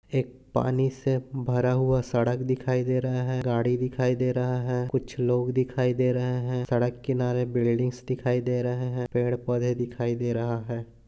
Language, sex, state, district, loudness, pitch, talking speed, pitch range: Hindi, male, Chhattisgarh, Korba, -27 LUFS, 125 Hz, 185 wpm, 125-130 Hz